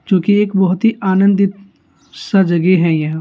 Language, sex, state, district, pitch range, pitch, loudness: Hindi, male, Bihar, Gaya, 180-200 Hz, 195 Hz, -14 LUFS